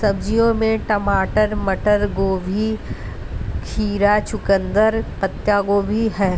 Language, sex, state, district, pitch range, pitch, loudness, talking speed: Hindi, female, Uttar Pradesh, Ghazipur, 195-215 Hz, 205 Hz, -19 LUFS, 95 wpm